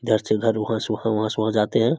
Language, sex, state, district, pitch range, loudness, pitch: Hindi, male, Bihar, Samastipur, 110-115 Hz, -22 LUFS, 110 Hz